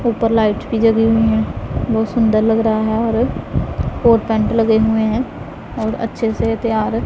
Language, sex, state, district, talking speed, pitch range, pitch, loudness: Hindi, female, Punjab, Pathankot, 185 wpm, 220-230 Hz, 225 Hz, -16 LUFS